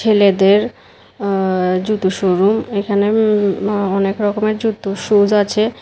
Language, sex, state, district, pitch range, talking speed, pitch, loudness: Bengali, female, Tripura, West Tripura, 195-215 Hz, 105 wpm, 205 Hz, -15 LUFS